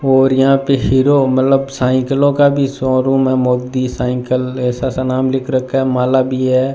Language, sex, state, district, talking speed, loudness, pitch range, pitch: Hindi, male, Rajasthan, Bikaner, 185 wpm, -14 LUFS, 130-135 Hz, 130 Hz